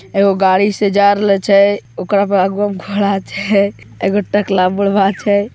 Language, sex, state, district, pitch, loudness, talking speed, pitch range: Hindi, female, Bihar, Begusarai, 200 Hz, -14 LUFS, 110 wpm, 195-205 Hz